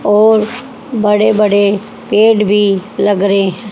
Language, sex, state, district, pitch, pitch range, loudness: Hindi, female, Haryana, Jhajjar, 210 Hz, 200-220 Hz, -12 LUFS